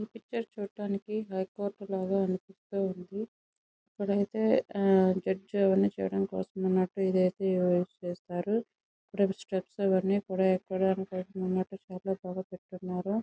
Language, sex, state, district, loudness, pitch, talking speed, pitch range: Telugu, female, Andhra Pradesh, Chittoor, -31 LUFS, 190 Hz, 80 wpm, 185-200 Hz